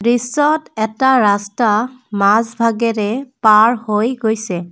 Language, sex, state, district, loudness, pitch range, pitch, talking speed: Assamese, female, Assam, Kamrup Metropolitan, -15 LUFS, 210-245 Hz, 225 Hz, 90 wpm